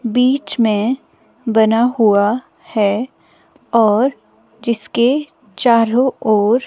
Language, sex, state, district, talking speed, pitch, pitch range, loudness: Hindi, female, Himachal Pradesh, Shimla, 80 wpm, 235 Hz, 220-255 Hz, -16 LUFS